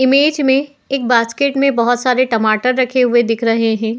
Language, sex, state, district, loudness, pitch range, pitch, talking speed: Hindi, female, Uttar Pradesh, Etah, -14 LUFS, 230-270 Hz, 250 Hz, 195 wpm